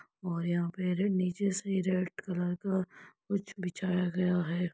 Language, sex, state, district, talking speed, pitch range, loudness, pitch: Hindi, female, Uttar Pradesh, Etah, 150 wpm, 180-190 Hz, -33 LUFS, 180 Hz